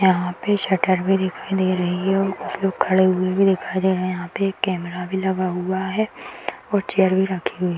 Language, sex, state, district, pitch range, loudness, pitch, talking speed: Hindi, female, Bihar, Darbhanga, 185-195 Hz, -21 LUFS, 190 Hz, 240 wpm